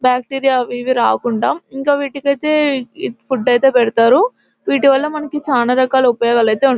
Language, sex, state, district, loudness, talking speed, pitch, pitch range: Telugu, female, Telangana, Nalgonda, -15 LUFS, 160 wpm, 260 Hz, 245-280 Hz